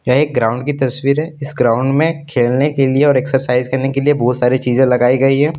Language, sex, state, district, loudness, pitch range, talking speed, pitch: Hindi, male, Jharkhand, Deoghar, -14 LUFS, 125-145 Hz, 245 wpm, 135 Hz